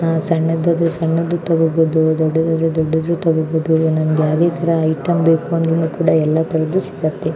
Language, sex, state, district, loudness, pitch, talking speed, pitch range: Kannada, female, Karnataka, Mysore, -16 LUFS, 165 Hz, 75 wpm, 160-165 Hz